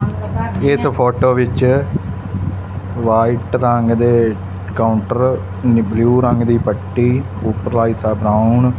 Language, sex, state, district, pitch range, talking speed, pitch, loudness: Punjabi, male, Punjab, Fazilka, 100-120 Hz, 110 wpm, 115 Hz, -16 LUFS